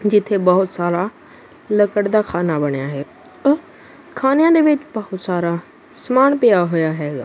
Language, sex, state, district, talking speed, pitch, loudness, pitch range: Punjabi, female, Punjab, Kapurthala, 140 wpm, 200 Hz, -17 LUFS, 170-250 Hz